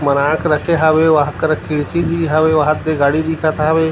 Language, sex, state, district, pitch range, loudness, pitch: Chhattisgarhi, male, Chhattisgarh, Rajnandgaon, 150-160 Hz, -15 LUFS, 155 Hz